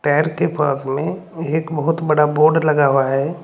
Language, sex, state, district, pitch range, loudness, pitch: Hindi, male, Uttar Pradesh, Saharanpur, 145-160 Hz, -17 LUFS, 150 Hz